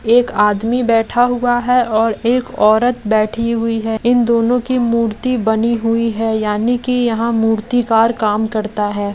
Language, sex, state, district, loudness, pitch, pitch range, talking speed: Hindi, female, Bihar, Jamui, -15 LUFS, 230 Hz, 220-245 Hz, 165 wpm